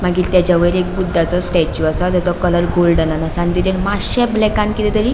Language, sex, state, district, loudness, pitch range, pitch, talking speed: Konkani, female, Goa, North and South Goa, -15 LUFS, 175-190 Hz, 180 Hz, 210 wpm